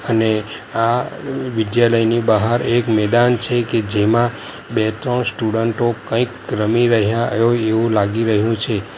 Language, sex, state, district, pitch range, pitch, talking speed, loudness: Gujarati, male, Gujarat, Valsad, 110-120 Hz, 115 Hz, 135 wpm, -17 LUFS